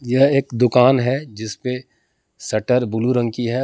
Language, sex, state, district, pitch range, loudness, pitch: Hindi, male, Jharkhand, Palamu, 115-130 Hz, -18 LUFS, 125 Hz